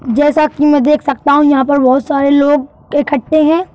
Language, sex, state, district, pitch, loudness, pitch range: Hindi, male, Madhya Pradesh, Bhopal, 290 Hz, -11 LUFS, 280-300 Hz